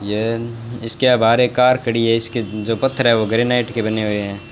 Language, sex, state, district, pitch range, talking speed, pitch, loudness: Hindi, male, Rajasthan, Bikaner, 110-120 Hz, 215 wpm, 115 Hz, -17 LUFS